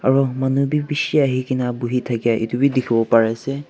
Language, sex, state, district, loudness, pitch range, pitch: Nagamese, male, Nagaland, Kohima, -19 LUFS, 120-140 Hz, 130 Hz